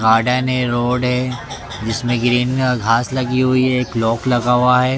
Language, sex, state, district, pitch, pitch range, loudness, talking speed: Hindi, male, Maharashtra, Mumbai Suburban, 125 Hz, 120-125 Hz, -17 LUFS, 180 wpm